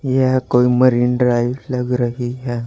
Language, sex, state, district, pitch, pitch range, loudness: Hindi, male, Haryana, Charkhi Dadri, 125 Hz, 120-130 Hz, -17 LUFS